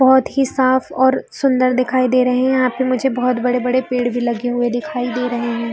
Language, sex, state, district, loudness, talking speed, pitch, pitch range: Hindi, female, Jharkhand, Sahebganj, -17 LUFS, 250 wpm, 255 Hz, 245-260 Hz